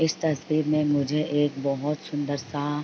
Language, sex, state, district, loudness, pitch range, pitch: Hindi, female, Uttar Pradesh, Varanasi, -26 LUFS, 145-155 Hz, 145 Hz